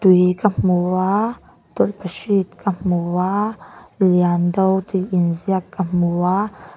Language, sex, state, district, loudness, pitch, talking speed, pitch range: Mizo, female, Mizoram, Aizawl, -19 LUFS, 185 Hz, 125 wpm, 180-200 Hz